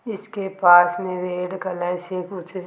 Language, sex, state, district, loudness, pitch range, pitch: Hindi, female, Rajasthan, Jaipur, -21 LUFS, 180-190 Hz, 180 Hz